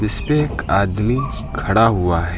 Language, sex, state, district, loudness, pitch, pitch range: Hindi, male, Uttar Pradesh, Lucknow, -18 LUFS, 105 Hz, 95-120 Hz